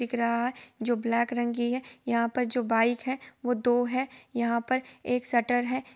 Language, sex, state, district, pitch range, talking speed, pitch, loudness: Hindi, female, Bihar, Sitamarhi, 235-250 Hz, 220 wpm, 245 Hz, -28 LUFS